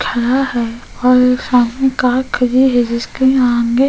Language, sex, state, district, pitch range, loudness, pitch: Hindi, female, Goa, North and South Goa, 240-260 Hz, -14 LUFS, 250 Hz